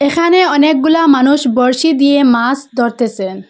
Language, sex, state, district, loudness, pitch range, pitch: Bengali, female, Assam, Hailakandi, -11 LUFS, 245-305 Hz, 275 Hz